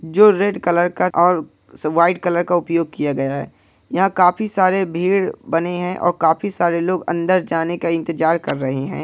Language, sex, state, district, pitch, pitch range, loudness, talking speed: Hindi, male, Bihar, Purnia, 175 Hz, 165-185 Hz, -18 LUFS, 195 wpm